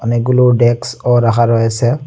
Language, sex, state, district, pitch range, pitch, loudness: Bengali, male, Assam, Hailakandi, 115-125 Hz, 120 Hz, -12 LUFS